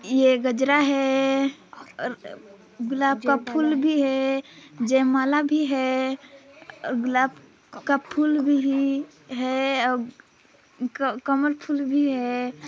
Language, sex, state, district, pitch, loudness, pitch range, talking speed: Hindi, female, Chhattisgarh, Sarguja, 270 Hz, -23 LUFS, 255-285 Hz, 130 wpm